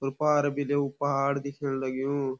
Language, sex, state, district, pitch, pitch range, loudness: Garhwali, male, Uttarakhand, Uttarkashi, 140 Hz, 135-145 Hz, -28 LUFS